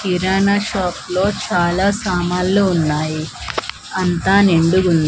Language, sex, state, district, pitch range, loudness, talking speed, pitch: Telugu, female, Andhra Pradesh, Manyam, 175-195 Hz, -17 LUFS, 95 wpm, 180 Hz